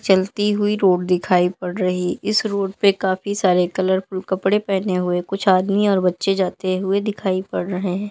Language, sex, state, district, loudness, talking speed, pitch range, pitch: Hindi, female, Bihar, Madhepura, -19 LUFS, 185 wpm, 185-200 Hz, 190 Hz